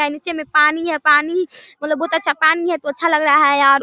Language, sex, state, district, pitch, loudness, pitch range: Hindi, female, Bihar, Darbhanga, 305 Hz, -16 LUFS, 295-330 Hz